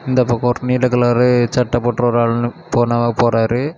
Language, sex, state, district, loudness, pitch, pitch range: Tamil, male, Tamil Nadu, Kanyakumari, -16 LUFS, 120 Hz, 120-125 Hz